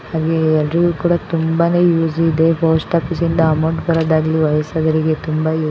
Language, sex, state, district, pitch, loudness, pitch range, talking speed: Kannada, female, Karnataka, Bellary, 160 Hz, -16 LUFS, 160-165 Hz, 135 wpm